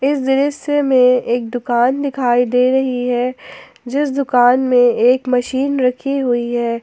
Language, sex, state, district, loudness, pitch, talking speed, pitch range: Hindi, female, Jharkhand, Ranchi, -15 LUFS, 250 Hz, 150 wpm, 245-270 Hz